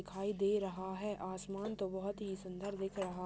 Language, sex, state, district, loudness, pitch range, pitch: Hindi, male, Chhattisgarh, Rajnandgaon, -40 LUFS, 190-200 Hz, 195 Hz